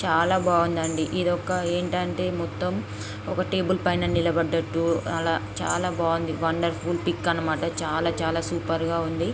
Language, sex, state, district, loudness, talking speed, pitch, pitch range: Telugu, female, Andhra Pradesh, Guntur, -25 LUFS, 130 wpm, 165 Hz, 160-175 Hz